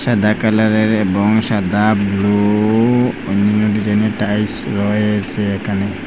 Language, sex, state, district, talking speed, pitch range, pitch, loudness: Bengali, male, Assam, Hailakandi, 100 wpm, 100-110 Hz, 105 Hz, -15 LUFS